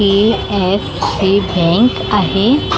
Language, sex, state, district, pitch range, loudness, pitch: Marathi, female, Maharashtra, Mumbai Suburban, 195-210 Hz, -14 LUFS, 200 Hz